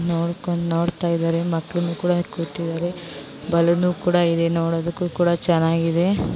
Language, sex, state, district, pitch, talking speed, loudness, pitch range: Kannada, female, Karnataka, Shimoga, 170 Hz, 115 wpm, -21 LUFS, 165-175 Hz